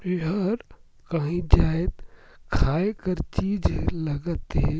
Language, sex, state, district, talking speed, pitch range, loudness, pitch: Surgujia, male, Chhattisgarh, Sarguja, 100 wpm, 160-190 Hz, -26 LUFS, 170 Hz